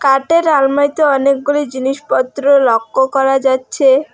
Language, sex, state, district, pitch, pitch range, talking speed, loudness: Bengali, female, West Bengal, Alipurduar, 275 Hz, 265-285 Hz, 100 wpm, -13 LUFS